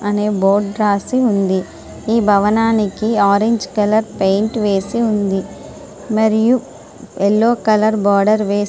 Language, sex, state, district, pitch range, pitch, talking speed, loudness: Telugu, female, Andhra Pradesh, Srikakulam, 200-220 Hz, 210 Hz, 125 wpm, -15 LUFS